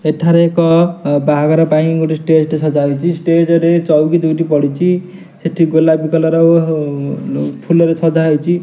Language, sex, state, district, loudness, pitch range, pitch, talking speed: Odia, male, Odisha, Nuapada, -13 LUFS, 155-170 Hz, 160 Hz, 125 wpm